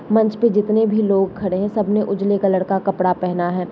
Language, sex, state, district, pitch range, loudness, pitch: Hindi, male, Bihar, Bhagalpur, 190-215 Hz, -18 LUFS, 200 Hz